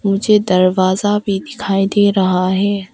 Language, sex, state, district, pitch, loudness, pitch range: Hindi, female, Arunachal Pradesh, Papum Pare, 195 Hz, -15 LUFS, 185-205 Hz